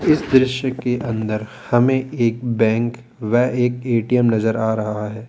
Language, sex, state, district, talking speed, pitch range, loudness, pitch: Hindi, male, Rajasthan, Jaipur, 160 wpm, 110-125 Hz, -19 LUFS, 120 Hz